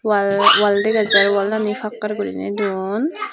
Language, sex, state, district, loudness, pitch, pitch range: Chakma, female, Tripura, Unakoti, -17 LUFS, 210 Hz, 200-215 Hz